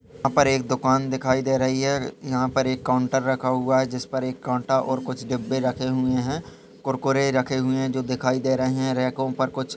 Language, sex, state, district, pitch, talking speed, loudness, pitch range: Hindi, male, Chhattisgarh, Raigarh, 130 Hz, 220 wpm, -23 LUFS, 130-135 Hz